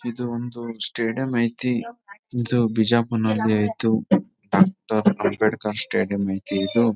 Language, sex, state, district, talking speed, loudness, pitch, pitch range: Kannada, male, Karnataka, Bijapur, 120 wpm, -22 LUFS, 115 Hz, 110-120 Hz